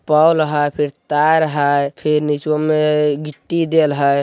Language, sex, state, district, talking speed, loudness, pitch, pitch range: Hindi, male, Bihar, Jamui, 170 wpm, -16 LUFS, 150 Hz, 145-155 Hz